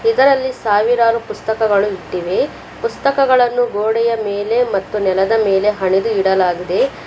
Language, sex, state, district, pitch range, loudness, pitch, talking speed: Kannada, female, Karnataka, Bangalore, 195-245 Hz, -16 LUFS, 220 Hz, 100 wpm